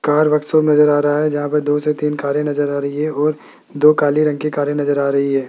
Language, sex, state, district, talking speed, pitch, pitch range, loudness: Hindi, male, Rajasthan, Jaipur, 285 wpm, 150 Hz, 145-150 Hz, -16 LUFS